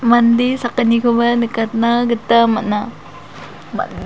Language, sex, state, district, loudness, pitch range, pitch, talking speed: Garo, female, Meghalaya, South Garo Hills, -15 LUFS, 230-240 Hz, 235 Hz, 90 wpm